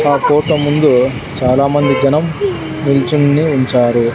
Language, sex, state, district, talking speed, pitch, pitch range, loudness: Telugu, male, Andhra Pradesh, Sri Satya Sai, 100 wpm, 145 Hz, 130-150 Hz, -13 LUFS